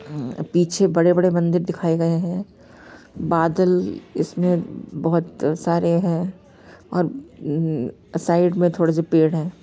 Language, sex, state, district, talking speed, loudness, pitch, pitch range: Hindi, female, Bihar, Saharsa, 110 wpm, -21 LUFS, 170 Hz, 165-180 Hz